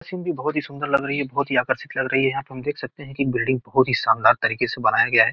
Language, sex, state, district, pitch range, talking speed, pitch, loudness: Hindi, male, Bihar, Gopalganj, 130-145 Hz, 350 wpm, 135 Hz, -21 LUFS